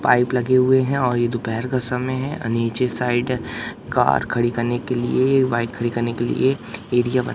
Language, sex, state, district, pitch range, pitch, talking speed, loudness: Hindi, male, Madhya Pradesh, Katni, 120-130 Hz, 125 Hz, 190 wpm, -21 LUFS